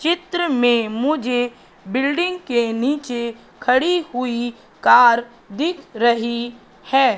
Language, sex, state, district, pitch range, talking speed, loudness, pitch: Hindi, female, Madhya Pradesh, Katni, 235-290 Hz, 100 wpm, -19 LUFS, 245 Hz